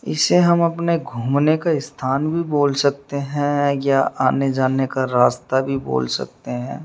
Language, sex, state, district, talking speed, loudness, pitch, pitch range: Hindi, male, Bihar, Darbhanga, 165 wpm, -19 LUFS, 140 Hz, 130-150 Hz